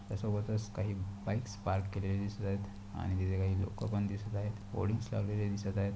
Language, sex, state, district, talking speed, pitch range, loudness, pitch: Marathi, male, Maharashtra, Pune, 170 wpm, 100-105 Hz, -37 LUFS, 100 Hz